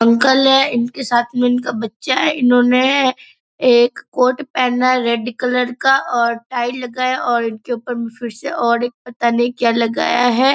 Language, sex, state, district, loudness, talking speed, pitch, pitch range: Hindi, female, Bihar, Purnia, -16 LUFS, 180 wpm, 245 Hz, 235-255 Hz